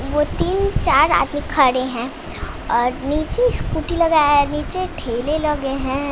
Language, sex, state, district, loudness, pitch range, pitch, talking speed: Hindi, female, Bihar, West Champaran, -19 LUFS, 270-315 Hz, 290 Hz, 145 wpm